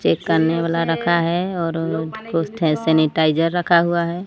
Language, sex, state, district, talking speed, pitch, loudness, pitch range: Hindi, female, Odisha, Sambalpur, 170 wpm, 165 Hz, -19 LUFS, 160-175 Hz